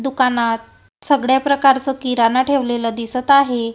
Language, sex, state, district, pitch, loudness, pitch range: Marathi, female, Maharashtra, Gondia, 255 Hz, -16 LUFS, 235-270 Hz